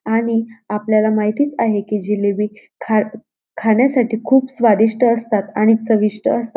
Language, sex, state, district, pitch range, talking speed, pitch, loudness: Marathi, female, Maharashtra, Dhule, 210-230 Hz, 120 wpm, 220 Hz, -17 LUFS